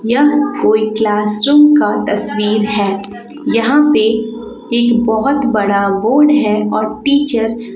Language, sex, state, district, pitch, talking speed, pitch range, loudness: Hindi, female, Jharkhand, Palamu, 225 Hz, 130 wpm, 210-280 Hz, -13 LUFS